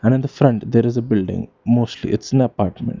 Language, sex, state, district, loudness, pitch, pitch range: English, male, Karnataka, Bangalore, -19 LUFS, 120 Hz, 110-130 Hz